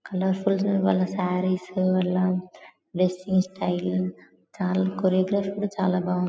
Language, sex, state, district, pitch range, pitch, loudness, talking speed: Telugu, female, Telangana, Karimnagar, 180-190 Hz, 185 Hz, -25 LUFS, 115 wpm